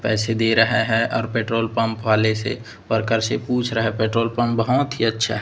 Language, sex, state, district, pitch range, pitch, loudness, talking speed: Hindi, male, Chhattisgarh, Raipur, 110-115 Hz, 115 Hz, -20 LUFS, 220 wpm